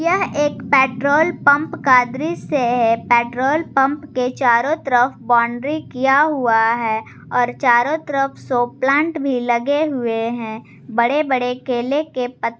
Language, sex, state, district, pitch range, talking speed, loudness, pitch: Hindi, female, Jharkhand, Garhwa, 240-290 Hz, 150 wpm, -18 LUFS, 260 Hz